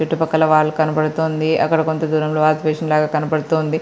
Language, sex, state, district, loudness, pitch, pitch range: Telugu, female, Andhra Pradesh, Srikakulam, -17 LUFS, 155 Hz, 155-160 Hz